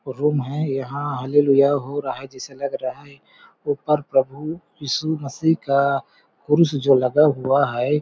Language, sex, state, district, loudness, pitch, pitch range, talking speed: Hindi, male, Chhattisgarh, Balrampur, -21 LUFS, 140 Hz, 135-150 Hz, 155 wpm